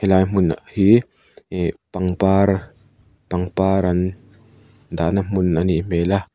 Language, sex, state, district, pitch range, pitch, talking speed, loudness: Mizo, male, Mizoram, Aizawl, 90-100 Hz, 95 Hz, 125 wpm, -19 LUFS